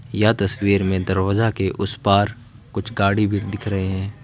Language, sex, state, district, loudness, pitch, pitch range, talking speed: Hindi, male, West Bengal, Alipurduar, -20 LUFS, 100 Hz, 100-110 Hz, 185 wpm